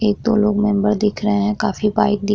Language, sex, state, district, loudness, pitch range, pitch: Hindi, female, Bihar, Vaishali, -18 LUFS, 205-210 Hz, 210 Hz